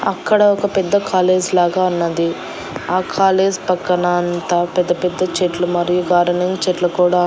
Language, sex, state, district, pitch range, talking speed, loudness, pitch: Telugu, female, Andhra Pradesh, Annamaya, 175-185 Hz, 140 wpm, -16 LUFS, 180 Hz